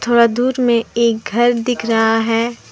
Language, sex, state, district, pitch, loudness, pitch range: Hindi, female, Jharkhand, Deoghar, 235 Hz, -15 LUFS, 225-240 Hz